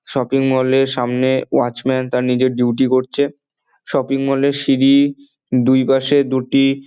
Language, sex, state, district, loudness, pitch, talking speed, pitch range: Bengali, male, West Bengal, Dakshin Dinajpur, -16 LUFS, 135 Hz, 150 wpm, 130-135 Hz